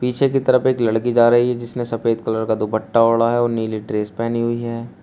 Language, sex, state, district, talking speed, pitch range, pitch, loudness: Hindi, male, Uttar Pradesh, Shamli, 250 wpm, 110-120 Hz, 115 Hz, -18 LUFS